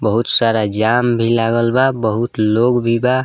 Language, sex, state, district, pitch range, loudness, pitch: Bhojpuri, male, Bihar, East Champaran, 110-120 Hz, -15 LUFS, 115 Hz